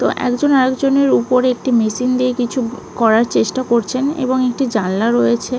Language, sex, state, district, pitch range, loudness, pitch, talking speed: Bengali, female, West Bengal, Malda, 235-260 Hz, -16 LUFS, 250 Hz, 170 wpm